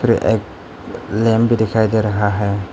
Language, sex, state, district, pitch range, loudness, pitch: Hindi, male, Arunachal Pradesh, Papum Pare, 105-110 Hz, -17 LUFS, 110 Hz